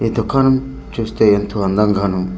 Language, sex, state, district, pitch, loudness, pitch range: Telugu, male, Andhra Pradesh, Manyam, 110 Hz, -16 LUFS, 100-115 Hz